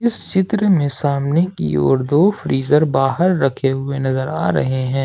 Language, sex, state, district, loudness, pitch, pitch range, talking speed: Hindi, male, Jharkhand, Ranchi, -17 LUFS, 140 Hz, 135-175 Hz, 190 wpm